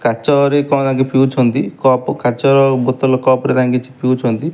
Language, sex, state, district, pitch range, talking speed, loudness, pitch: Odia, male, Odisha, Malkangiri, 125-135 Hz, 160 wpm, -14 LUFS, 130 Hz